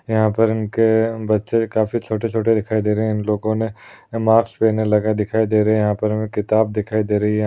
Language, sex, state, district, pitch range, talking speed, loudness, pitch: Hindi, male, Uttar Pradesh, Jalaun, 105-110 Hz, 225 wpm, -19 LUFS, 110 Hz